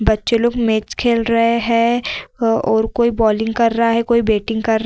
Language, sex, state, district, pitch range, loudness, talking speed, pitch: Hindi, female, Bihar, Vaishali, 220-235 Hz, -16 LUFS, 210 wpm, 230 Hz